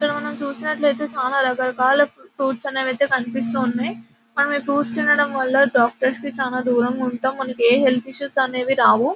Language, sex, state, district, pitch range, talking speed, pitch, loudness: Telugu, female, Telangana, Nalgonda, 255-280 Hz, 170 wpm, 265 Hz, -20 LUFS